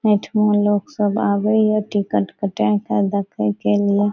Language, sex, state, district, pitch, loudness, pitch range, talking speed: Maithili, female, Bihar, Saharsa, 205 Hz, -19 LUFS, 195-210 Hz, 160 wpm